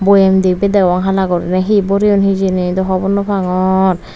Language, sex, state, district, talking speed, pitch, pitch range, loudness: Chakma, female, Tripura, Unakoti, 160 wpm, 190 Hz, 185-200 Hz, -13 LUFS